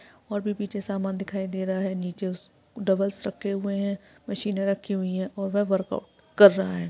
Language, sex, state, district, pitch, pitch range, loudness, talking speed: Hindi, female, Chhattisgarh, Bilaspur, 195 Hz, 190-205 Hz, -26 LUFS, 200 wpm